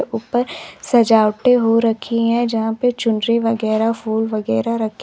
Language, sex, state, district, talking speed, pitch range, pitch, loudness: Hindi, female, Uttar Pradesh, Lalitpur, 155 wpm, 220-235 Hz, 230 Hz, -17 LUFS